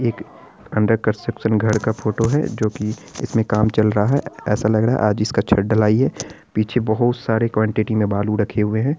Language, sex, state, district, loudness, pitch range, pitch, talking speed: Hindi, male, Bihar, Araria, -19 LUFS, 105-115 Hz, 110 Hz, 215 wpm